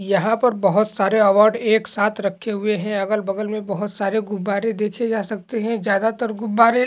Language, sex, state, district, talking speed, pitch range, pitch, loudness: Hindi, male, Bihar, Samastipur, 190 wpm, 200-220 Hz, 215 Hz, -20 LUFS